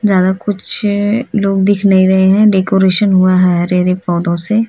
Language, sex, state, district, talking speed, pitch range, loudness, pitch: Hindi, female, Maharashtra, Mumbai Suburban, 165 wpm, 185-205 Hz, -12 LUFS, 190 Hz